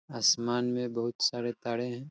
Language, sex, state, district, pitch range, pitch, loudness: Hindi, male, Uttar Pradesh, Hamirpur, 120-125 Hz, 120 Hz, -30 LUFS